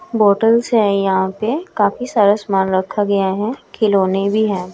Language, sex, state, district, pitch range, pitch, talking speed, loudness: Hindi, female, Chhattisgarh, Raipur, 195-220 Hz, 205 Hz, 165 wpm, -16 LUFS